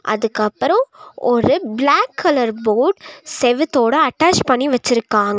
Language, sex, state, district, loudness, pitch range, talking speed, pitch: Tamil, female, Tamil Nadu, Nilgiris, -16 LUFS, 225-310 Hz, 100 wpm, 250 Hz